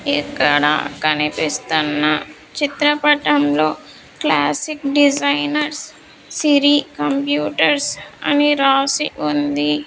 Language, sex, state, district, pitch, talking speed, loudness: Telugu, female, Andhra Pradesh, Sri Satya Sai, 275 Hz, 60 wpm, -17 LUFS